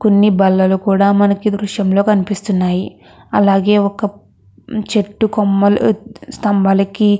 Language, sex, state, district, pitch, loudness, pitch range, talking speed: Telugu, female, Andhra Pradesh, Krishna, 200 Hz, -14 LUFS, 195-210 Hz, 100 wpm